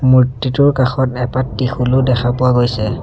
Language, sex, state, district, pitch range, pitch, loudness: Assamese, male, Assam, Sonitpur, 125-130 Hz, 125 Hz, -15 LUFS